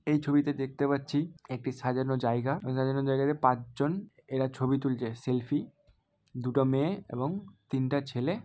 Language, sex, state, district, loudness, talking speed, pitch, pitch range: Bengali, male, West Bengal, Malda, -31 LUFS, 130 wpm, 135 Hz, 130-145 Hz